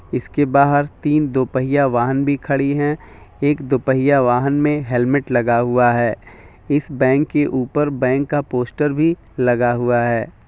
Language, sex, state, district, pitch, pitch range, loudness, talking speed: Hindi, male, Jharkhand, Jamtara, 135 Hz, 125-145 Hz, -17 LUFS, 165 wpm